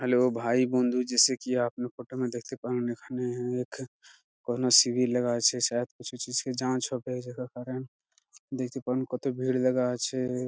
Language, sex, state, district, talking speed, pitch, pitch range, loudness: Bengali, male, West Bengal, Purulia, 135 wpm, 125 Hz, 125-130 Hz, -28 LUFS